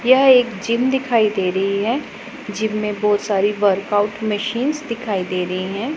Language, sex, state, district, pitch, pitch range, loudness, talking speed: Hindi, female, Punjab, Pathankot, 210 Hz, 200-240 Hz, -19 LUFS, 170 wpm